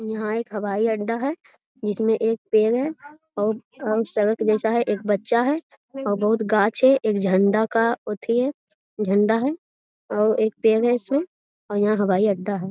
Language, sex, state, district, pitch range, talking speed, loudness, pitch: Hindi, female, Bihar, Jamui, 210-240 Hz, 175 wpm, -22 LUFS, 220 Hz